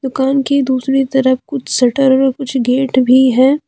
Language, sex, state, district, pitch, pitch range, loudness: Hindi, female, Jharkhand, Deoghar, 265 Hz, 255-270 Hz, -13 LUFS